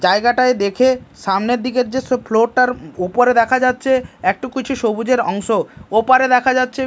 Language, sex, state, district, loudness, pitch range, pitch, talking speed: Bengali, male, Odisha, Malkangiri, -16 LUFS, 225-255 Hz, 250 Hz, 150 wpm